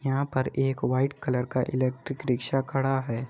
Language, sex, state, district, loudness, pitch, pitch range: Hindi, male, Uttar Pradesh, Muzaffarnagar, -27 LUFS, 130 Hz, 130-135 Hz